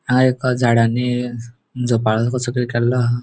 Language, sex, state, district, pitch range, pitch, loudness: Konkani, male, Goa, North and South Goa, 120-125 Hz, 120 Hz, -18 LUFS